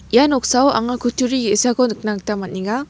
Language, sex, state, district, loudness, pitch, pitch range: Garo, female, Meghalaya, West Garo Hills, -17 LUFS, 245 Hz, 210-255 Hz